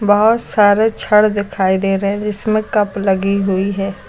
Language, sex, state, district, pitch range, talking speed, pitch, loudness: Hindi, female, Uttar Pradesh, Lucknow, 195-210 Hz, 175 wpm, 205 Hz, -15 LUFS